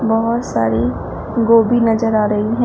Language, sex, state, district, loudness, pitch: Hindi, female, Uttar Pradesh, Shamli, -16 LUFS, 225 Hz